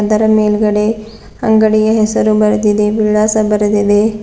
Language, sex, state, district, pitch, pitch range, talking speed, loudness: Kannada, female, Karnataka, Bidar, 215 Hz, 210-220 Hz, 100 wpm, -12 LUFS